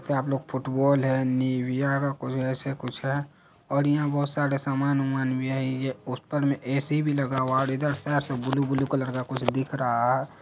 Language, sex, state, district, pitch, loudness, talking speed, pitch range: Hindi, male, Bihar, Araria, 135 Hz, -26 LUFS, 215 wpm, 130-140 Hz